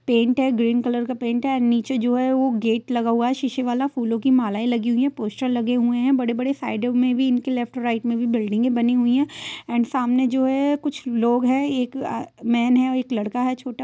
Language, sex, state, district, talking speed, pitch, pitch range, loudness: Hindi, female, Bihar, East Champaran, 245 wpm, 245 Hz, 235-260 Hz, -21 LUFS